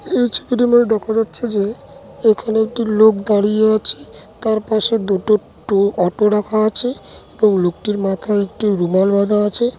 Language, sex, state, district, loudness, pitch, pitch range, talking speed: Bengali, male, West Bengal, Dakshin Dinajpur, -16 LUFS, 215 Hz, 200-220 Hz, 160 wpm